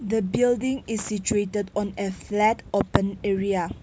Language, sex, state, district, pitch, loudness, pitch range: English, female, Nagaland, Kohima, 205 Hz, -25 LUFS, 200-220 Hz